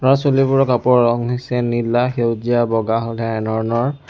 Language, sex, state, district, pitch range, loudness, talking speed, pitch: Assamese, male, Assam, Sonitpur, 115-125 Hz, -17 LUFS, 130 wpm, 120 Hz